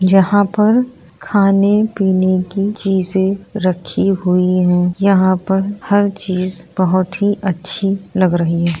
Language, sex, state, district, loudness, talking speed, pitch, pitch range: Hindi, female, Bihar, Muzaffarpur, -15 LUFS, 125 wpm, 190 Hz, 185-200 Hz